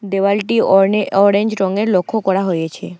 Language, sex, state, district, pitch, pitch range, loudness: Bengali, female, West Bengal, Alipurduar, 200 Hz, 190-210 Hz, -15 LUFS